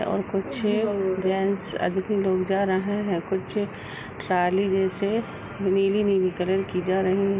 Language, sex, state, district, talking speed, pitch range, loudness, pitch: Hindi, female, Uttar Pradesh, Jalaun, 140 wpm, 190-200 Hz, -25 LUFS, 195 Hz